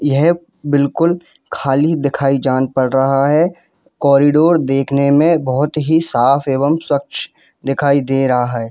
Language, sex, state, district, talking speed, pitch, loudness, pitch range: Hindi, male, Jharkhand, Jamtara, 140 wpm, 140 Hz, -15 LUFS, 135-160 Hz